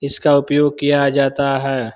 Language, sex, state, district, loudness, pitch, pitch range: Hindi, male, Bihar, Vaishali, -16 LUFS, 140 Hz, 135-145 Hz